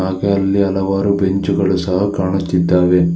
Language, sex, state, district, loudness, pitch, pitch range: Kannada, male, Karnataka, Bangalore, -16 LUFS, 95 Hz, 90-100 Hz